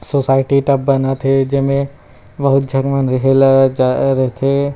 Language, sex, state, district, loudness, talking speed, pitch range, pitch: Chhattisgarhi, male, Chhattisgarh, Rajnandgaon, -14 LUFS, 140 wpm, 135-140 Hz, 135 Hz